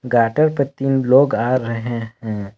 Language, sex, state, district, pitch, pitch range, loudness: Hindi, male, Jharkhand, Palamu, 125 Hz, 115-135 Hz, -18 LUFS